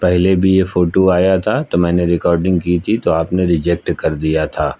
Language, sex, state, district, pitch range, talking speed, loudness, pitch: Hindi, male, Uttar Pradesh, Lucknow, 85-95 Hz, 215 wpm, -15 LUFS, 90 Hz